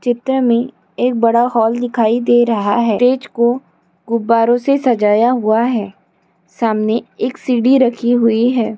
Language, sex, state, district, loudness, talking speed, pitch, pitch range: Hindi, female, Chhattisgarh, Bilaspur, -15 LUFS, 150 wpm, 235 Hz, 220-245 Hz